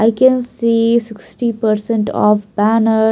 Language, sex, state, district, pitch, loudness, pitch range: English, female, Maharashtra, Mumbai Suburban, 225 Hz, -15 LUFS, 215-235 Hz